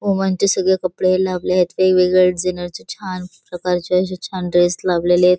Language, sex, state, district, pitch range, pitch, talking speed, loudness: Marathi, female, Maharashtra, Pune, 180-185 Hz, 180 Hz, 155 wpm, -17 LUFS